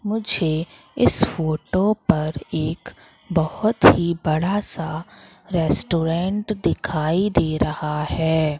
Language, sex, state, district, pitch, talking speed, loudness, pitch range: Hindi, female, Madhya Pradesh, Katni, 165 Hz, 100 wpm, -21 LUFS, 155-195 Hz